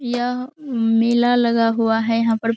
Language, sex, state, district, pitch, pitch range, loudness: Hindi, female, Bihar, Araria, 230 Hz, 230-245 Hz, -18 LUFS